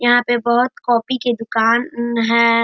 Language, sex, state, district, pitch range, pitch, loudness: Hindi, male, Bihar, Darbhanga, 230-245 Hz, 235 Hz, -17 LUFS